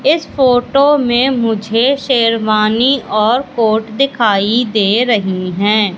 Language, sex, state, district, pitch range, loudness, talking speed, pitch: Hindi, female, Madhya Pradesh, Katni, 215-260 Hz, -13 LUFS, 110 wpm, 230 Hz